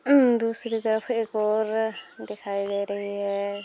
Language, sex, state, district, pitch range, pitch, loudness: Hindi, female, Bihar, Saran, 200-230 Hz, 220 Hz, -26 LUFS